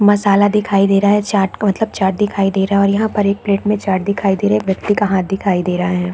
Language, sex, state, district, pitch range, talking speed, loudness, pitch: Hindi, female, Chhattisgarh, Bilaspur, 195-205 Hz, 305 wpm, -15 LUFS, 200 Hz